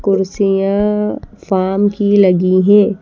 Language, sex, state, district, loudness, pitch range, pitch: Hindi, female, Madhya Pradesh, Bhopal, -13 LUFS, 190-205 Hz, 200 Hz